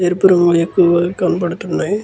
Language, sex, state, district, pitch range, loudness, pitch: Telugu, male, Andhra Pradesh, Guntur, 175-185 Hz, -14 LUFS, 180 Hz